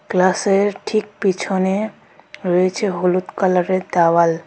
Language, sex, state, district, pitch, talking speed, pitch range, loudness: Bengali, female, West Bengal, Alipurduar, 185 Hz, 105 wpm, 180-200 Hz, -18 LUFS